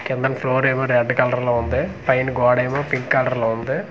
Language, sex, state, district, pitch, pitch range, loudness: Telugu, male, Andhra Pradesh, Manyam, 130 Hz, 125-130 Hz, -19 LUFS